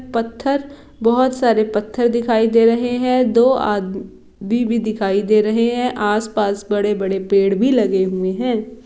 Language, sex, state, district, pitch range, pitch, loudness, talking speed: Hindi, female, Bihar, East Champaran, 205-240 Hz, 225 Hz, -17 LUFS, 155 wpm